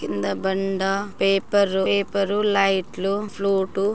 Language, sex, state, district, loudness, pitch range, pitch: Telugu, male, Andhra Pradesh, Guntur, -22 LUFS, 190-200 Hz, 195 Hz